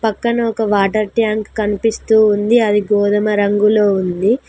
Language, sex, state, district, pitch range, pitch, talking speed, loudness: Telugu, female, Telangana, Mahabubabad, 205-225 Hz, 215 Hz, 135 wpm, -15 LUFS